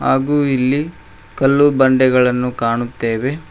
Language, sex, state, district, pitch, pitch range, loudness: Kannada, male, Karnataka, Koppal, 130 Hz, 120-140 Hz, -15 LUFS